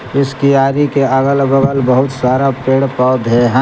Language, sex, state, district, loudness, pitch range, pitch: Hindi, male, Jharkhand, Garhwa, -12 LUFS, 130-140 Hz, 135 Hz